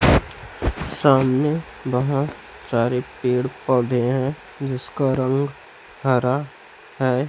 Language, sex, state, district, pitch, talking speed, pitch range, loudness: Hindi, male, Chhattisgarh, Raipur, 130 Hz, 80 wpm, 125-140 Hz, -22 LUFS